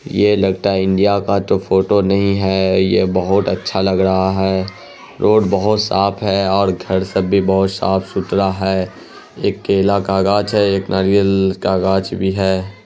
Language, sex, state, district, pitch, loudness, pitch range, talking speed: Hindi, male, Bihar, Araria, 95 Hz, -16 LUFS, 95-100 Hz, 180 wpm